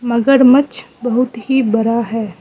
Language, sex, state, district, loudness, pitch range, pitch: Hindi, female, Mizoram, Aizawl, -14 LUFS, 230-255 Hz, 240 Hz